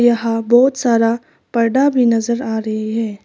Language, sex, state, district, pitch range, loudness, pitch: Hindi, female, Arunachal Pradesh, Papum Pare, 225-245 Hz, -16 LUFS, 230 Hz